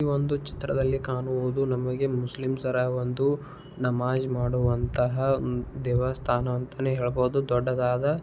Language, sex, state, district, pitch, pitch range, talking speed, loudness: Kannada, male, Karnataka, Belgaum, 130 Hz, 125-135 Hz, 100 wpm, -27 LUFS